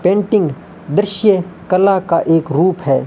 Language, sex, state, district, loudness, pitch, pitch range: Hindi, male, Rajasthan, Bikaner, -14 LUFS, 185 Hz, 165-200 Hz